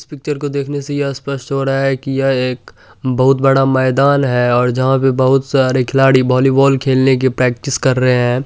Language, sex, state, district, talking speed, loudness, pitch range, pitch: Hindi, male, Bihar, Supaul, 205 wpm, -14 LUFS, 130-135 Hz, 135 Hz